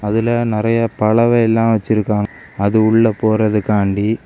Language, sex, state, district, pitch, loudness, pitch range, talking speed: Tamil, male, Tamil Nadu, Kanyakumari, 110 Hz, -15 LUFS, 105-115 Hz, 100 wpm